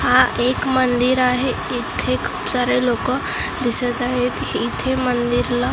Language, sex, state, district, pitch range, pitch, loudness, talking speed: Marathi, female, Maharashtra, Gondia, 245-255 Hz, 250 Hz, -18 LUFS, 135 wpm